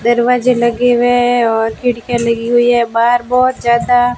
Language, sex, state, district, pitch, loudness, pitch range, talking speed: Hindi, female, Rajasthan, Bikaner, 240 Hz, -13 LUFS, 235-245 Hz, 170 wpm